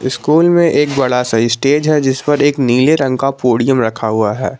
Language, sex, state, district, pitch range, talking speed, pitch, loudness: Hindi, male, Jharkhand, Garhwa, 125-145 Hz, 220 wpm, 135 Hz, -13 LUFS